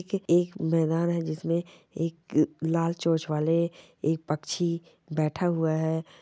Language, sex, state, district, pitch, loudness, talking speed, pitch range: Hindi, female, Rajasthan, Churu, 165 Hz, -28 LUFS, 125 wpm, 160-170 Hz